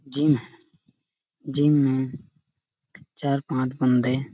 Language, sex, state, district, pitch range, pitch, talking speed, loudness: Hindi, male, Chhattisgarh, Sarguja, 130-145 Hz, 140 Hz, 95 wpm, -23 LUFS